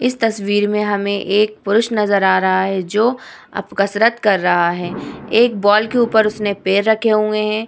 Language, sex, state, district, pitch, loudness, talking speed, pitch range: Hindi, female, Uttar Pradesh, Muzaffarnagar, 210 Hz, -16 LUFS, 195 wpm, 200-220 Hz